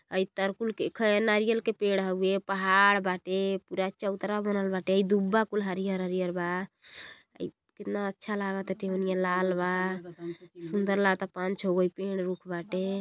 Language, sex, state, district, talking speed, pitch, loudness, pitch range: Bhojpuri, female, Uttar Pradesh, Gorakhpur, 165 wpm, 190 Hz, -29 LUFS, 185-200 Hz